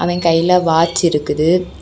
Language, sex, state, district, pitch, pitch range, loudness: Tamil, female, Tamil Nadu, Kanyakumari, 170 Hz, 165-175 Hz, -14 LUFS